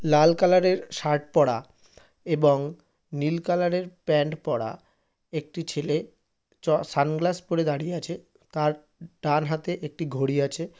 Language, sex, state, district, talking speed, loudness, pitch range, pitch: Bengali, male, West Bengal, North 24 Parganas, 130 wpm, -25 LUFS, 150-170 Hz, 160 Hz